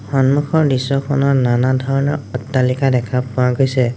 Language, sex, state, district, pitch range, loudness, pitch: Assamese, male, Assam, Sonitpur, 125-140 Hz, -16 LUFS, 130 Hz